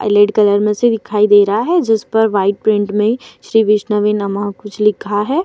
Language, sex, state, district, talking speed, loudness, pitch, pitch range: Hindi, female, Bihar, Vaishali, 200 wpm, -14 LUFS, 210 Hz, 205-220 Hz